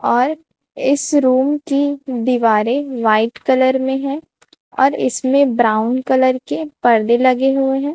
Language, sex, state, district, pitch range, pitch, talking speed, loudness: Hindi, female, Chhattisgarh, Raipur, 245-280 Hz, 260 Hz, 135 wpm, -16 LUFS